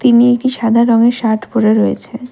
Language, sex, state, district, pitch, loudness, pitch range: Bengali, female, West Bengal, Darjeeling, 235 Hz, -12 LUFS, 230-245 Hz